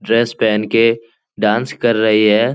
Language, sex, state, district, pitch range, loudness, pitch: Hindi, male, Bihar, Jahanabad, 110-115 Hz, -15 LUFS, 115 Hz